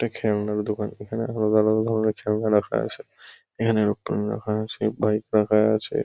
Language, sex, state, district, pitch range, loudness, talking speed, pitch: Bengali, male, West Bengal, Kolkata, 105-110 Hz, -24 LUFS, 170 wpm, 105 Hz